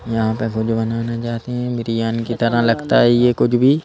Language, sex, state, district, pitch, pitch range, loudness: Hindi, male, Madhya Pradesh, Bhopal, 115 Hz, 115-120 Hz, -18 LUFS